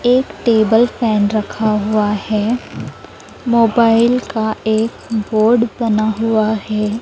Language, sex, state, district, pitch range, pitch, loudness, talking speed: Hindi, female, Maharashtra, Gondia, 215-230 Hz, 220 Hz, -15 LUFS, 110 wpm